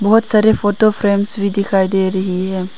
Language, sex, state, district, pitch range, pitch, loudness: Hindi, female, Arunachal Pradesh, Papum Pare, 190-215 Hz, 200 Hz, -15 LUFS